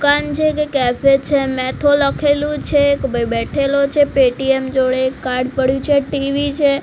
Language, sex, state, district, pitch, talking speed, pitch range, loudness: Gujarati, female, Gujarat, Gandhinagar, 275 Hz, 175 wpm, 260-285 Hz, -16 LUFS